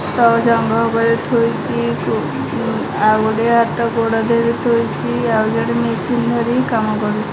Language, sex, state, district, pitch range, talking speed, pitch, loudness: Odia, female, Odisha, Khordha, 225-235 Hz, 140 wpm, 230 Hz, -16 LUFS